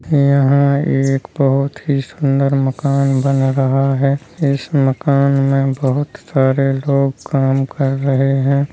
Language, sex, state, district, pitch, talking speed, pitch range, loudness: Hindi, male, Uttar Pradesh, Hamirpur, 135 Hz, 130 wpm, 135-140 Hz, -15 LUFS